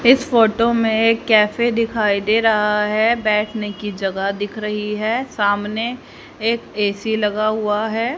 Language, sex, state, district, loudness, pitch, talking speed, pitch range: Hindi, female, Haryana, Rohtak, -18 LUFS, 215 Hz, 155 wpm, 210-230 Hz